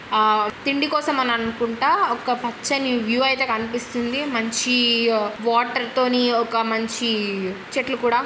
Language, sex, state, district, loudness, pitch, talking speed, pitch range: Telugu, female, Andhra Pradesh, Krishna, -21 LUFS, 240 Hz, 125 wpm, 225-255 Hz